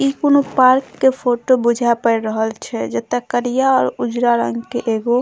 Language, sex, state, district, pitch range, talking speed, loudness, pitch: Maithili, female, Bihar, Saharsa, 230-260 Hz, 195 wpm, -17 LUFS, 245 Hz